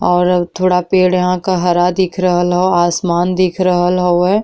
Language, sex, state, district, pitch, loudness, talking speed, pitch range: Bhojpuri, female, Uttar Pradesh, Deoria, 180 Hz, -14 LUFS, 175 wpm, 175-185 Hz